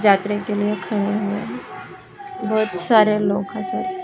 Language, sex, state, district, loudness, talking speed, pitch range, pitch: Hindi, female, Chhattisgarh, Raigarh, -20 LUFS, 150 wpm, 200-220 Hz, 210 Hz